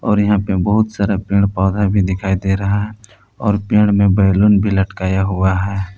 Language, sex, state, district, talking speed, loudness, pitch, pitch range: Hindi, male, Jharkhand, Palamu, 200 wpm, -15 LUFS, 100 Hz, 95-105 Hz